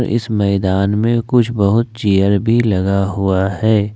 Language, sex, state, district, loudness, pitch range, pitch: Hindi, male, Jharkhand, Ranchi, -15 LUFS, 100-115 Hz, 105 Hz